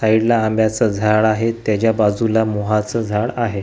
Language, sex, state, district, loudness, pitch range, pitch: Marathi, male, Maharashtra, Gondia, -17 LUFS, 105-115 Hz, 110 Hz